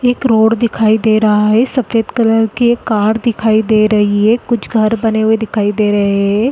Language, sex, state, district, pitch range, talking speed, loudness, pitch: Hindi, female, Uttarakhand, Uttarkashi, 215-230 Hz, 210 wpm, -12 LUFS, 220 Hz